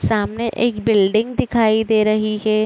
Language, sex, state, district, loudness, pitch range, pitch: Hindi, female, Uttar Pradesh, Budaun, -17 LUFS, 215-230 Hz, 215 Hz